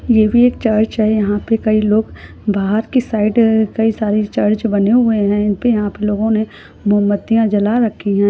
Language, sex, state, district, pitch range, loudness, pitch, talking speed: Hindi, female, Rajasthan, Churu, 205-225 Hz, -15 LUFS, 215 Hz, 200 wpm